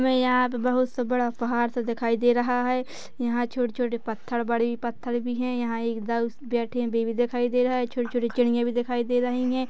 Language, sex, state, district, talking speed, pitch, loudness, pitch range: Hindi, female, Chhattisgarh, Rajnandgaon, 235 wpm, 245 Hz, -26 LUFS, 235-250 Hz